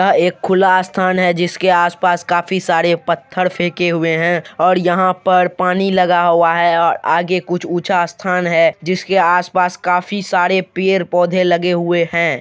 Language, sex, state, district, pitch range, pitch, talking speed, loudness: Hindi, male, Bihar, Supaul, 170-185 Hz, 180 Hz, 165 wpm, -15 LUFS